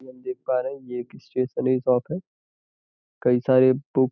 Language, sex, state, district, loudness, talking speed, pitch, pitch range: Hindi, male, Uttar Pradesh, Gorakhpur, -24 LUFS, 235 wpm, 130 Hz, 125-130 Hz